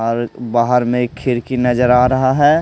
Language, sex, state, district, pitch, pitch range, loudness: Hindi, male, Odisha, Malkangiri, 125 Hz, 120-130 Hz, -15 LUFS